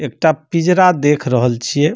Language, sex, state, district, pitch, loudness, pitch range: Maithili, male, Bihar, Samastipur, 150 Hz, -14 LUFS, 130-165 Hz